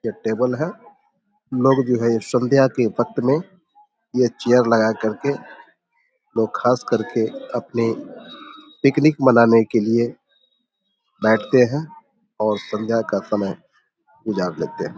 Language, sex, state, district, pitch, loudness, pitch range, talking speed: Hindi, male, Bihar, Samastipur, 130 Hz, -20 LUFS, 115-190 Hz, 130 wpm